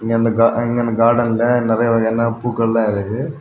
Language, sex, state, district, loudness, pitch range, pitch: Tamil, male, Tamil Nadu, Kanyakumari, -16 LUFS, 115-120 Hz, 115 Hz